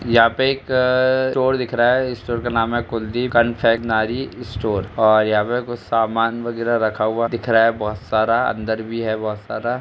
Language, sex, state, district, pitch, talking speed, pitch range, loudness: Hindi, male, Uttar Pradesh, Jalaun, 115 Hz, 200 wpm, 110-120 Hz, -19 LUFS